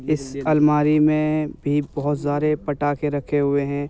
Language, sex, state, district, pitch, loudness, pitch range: Hindi, male, Uttar Pradesh, Jyotiba Phule Nagar, 145 Hz, -21 LUFS, 145-150 Hz